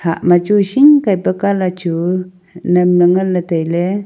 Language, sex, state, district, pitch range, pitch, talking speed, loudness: Wancho, female, Arunachal Pradesh, Longding, 175-200 Hz, 185 Hz, 190 wpm, -13 LUFS